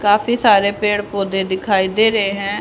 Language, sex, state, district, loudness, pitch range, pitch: Hindi, female, Haryana, Rohtak, -16 LUFS, 195-210 Hz, 205 Hz